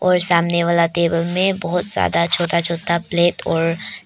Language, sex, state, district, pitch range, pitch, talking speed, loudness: Hindi, female, Arunachal Pradesh, Papum Pare, 170-175 Hz, 170 Hz, 150 wpm, -18 LUFS